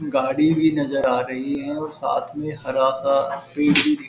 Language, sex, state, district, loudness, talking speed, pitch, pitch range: Hindi, male, Uttar Pradesh, Muzaffarnagar, -21 LUFS, 220 wpm, 145 Hz, 140-155 Hz